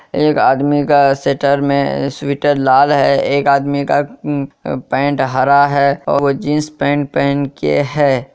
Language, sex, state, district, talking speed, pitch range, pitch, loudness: Hindi, male, Bihar, Kishanganj, 150 wpm, 140-145 Hz, 140 Hz, -14 LUFS